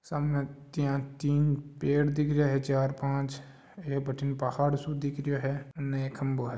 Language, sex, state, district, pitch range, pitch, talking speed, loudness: Marwari, male, Rajasthan, Nagaur, 135-145 Hz, 140 Hz, 155 wpm, -30 LUFS